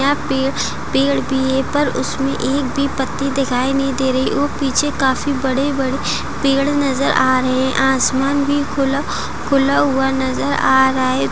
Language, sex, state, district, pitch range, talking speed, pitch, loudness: Hindi, female, Rajasthan, Churu, 265-280 Hz, 165 wpm, 270 Hz, -17 LUFS